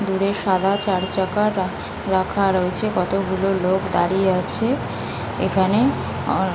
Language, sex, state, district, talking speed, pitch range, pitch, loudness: Bengali, female, West Bengal, North 24 Parganas, 110 wpm, 185-200 Hz, 190 Hz, -20 LUFS